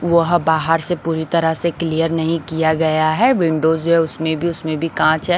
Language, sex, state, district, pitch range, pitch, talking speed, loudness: Hindi, female, Bihar, Patna, 160-170 Hz, 165 Hz, 210 wpm, -17 LUFS